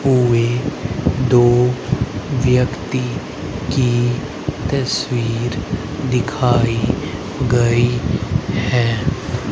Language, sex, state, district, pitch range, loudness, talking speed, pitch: Hindi, male, Haryana, Rohtak, 120-130 Hz, -18 LUFS, 50 wpm, 125 Hz